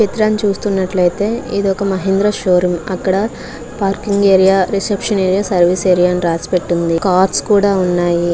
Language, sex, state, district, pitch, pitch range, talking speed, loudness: Telugu, female, Andhra Pradesh, Visakhapatnam, 190 Hz, 180-200 Hz, 160 wpm, -14 LUFS